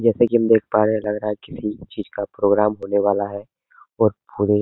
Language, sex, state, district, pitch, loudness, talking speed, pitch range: Hindi, male, Uttar Pradesh, Hamirpur, 105 Hz, -20 LUFS, 260 wpm, 100-110 Hz